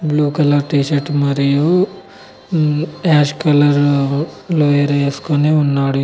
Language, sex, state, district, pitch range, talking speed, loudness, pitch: Telugu, male, Telangana, Mahabubabad, 145-155 Hz, 100 wpm, -15 LUFS, 145 Hz